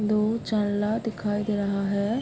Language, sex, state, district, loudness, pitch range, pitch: Hindi, female, Bihar, Kishanganj, -26 LUFS, 205-215 Hz, 210 Hz